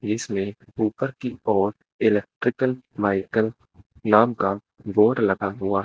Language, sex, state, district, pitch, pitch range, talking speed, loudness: Hindi, male, Uttar Pradesh, Lucknow, 105 Hz, 100-120 Hz, 115 wpm, -23 LUFS